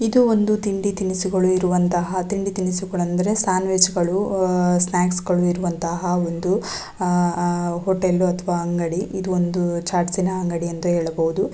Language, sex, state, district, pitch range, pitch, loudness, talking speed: Kannada, female, Karnataka, Raichur, 175-190 Hz, 180 Hz, -21 LUFS, 140 wpm